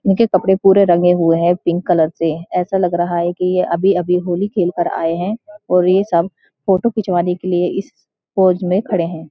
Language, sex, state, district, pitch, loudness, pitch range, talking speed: Hindi, female, Uttarakhand, Uttarkashi, 180 Hz, -16 LUFS, 175-190 Hz, 220 wpm